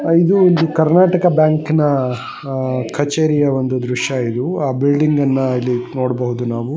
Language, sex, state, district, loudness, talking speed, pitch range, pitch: Kannada, male, Karnataka, Dakshina Kannada, -16 LUFS, 125 wpm, 125-155 Hz, 140 Hz